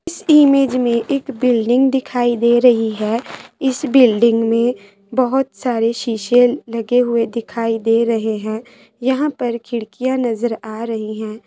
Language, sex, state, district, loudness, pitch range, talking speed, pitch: Hindi, female, Bihar, Bhagalpur, -17 LUFS, 225-260 Hz, 140 wpm, 235 Hz